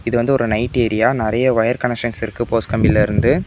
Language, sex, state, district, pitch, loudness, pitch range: Tamil, male, Tamil Nadu, Namakkal, 120 Hz, -17 LUFS, 115-120 Hz